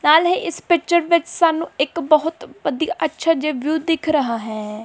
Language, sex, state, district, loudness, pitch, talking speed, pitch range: Punjabi, female, Punjab, Kapurthala, -19 LUFS, 315 Hz, 185 wpm, 295-335 Hz